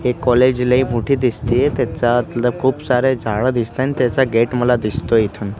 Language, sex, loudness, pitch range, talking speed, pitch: Marathi, male, -17 LUFS, 115-130 Hz, 180 wpm, 125 Hz